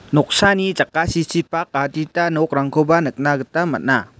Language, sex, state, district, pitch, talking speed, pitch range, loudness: Garo, male, Meghalaya, West Garo Hills, 155 Hz, 100 wpm, 140-165 Hz, -18 LUFS